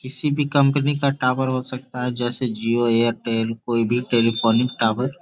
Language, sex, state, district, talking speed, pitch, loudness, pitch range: Hindi, male, Bihar, Gopalganj, 185 wpm, 125 Hz, -21 LUFS, 115-130 Hz